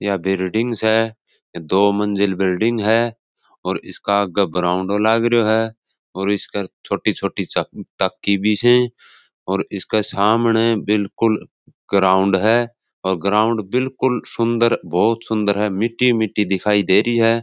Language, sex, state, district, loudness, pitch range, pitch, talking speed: Marwari, male, Rajasthan, Churu, -18 LUFS, 100-115 Hz, 105 Hz, 125 wpm